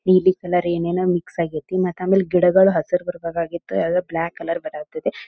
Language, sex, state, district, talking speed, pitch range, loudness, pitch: Kannada, female, Karnataka, Dharwad, 180 wpm, 170-185 Hz, -20 LUFS, 180 Hz